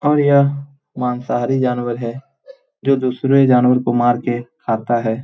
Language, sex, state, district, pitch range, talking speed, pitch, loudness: Hindi, male, Bihar, Jamui, 120-140 Hz, 150 wpm, 125 Hz, -17 LUFS